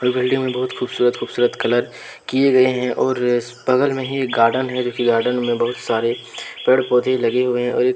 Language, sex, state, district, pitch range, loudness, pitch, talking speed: Hindi, male, Jharkhand, Deoghar, 120-130 Hz, -19 LUFS, 125 Hz, 225 wpm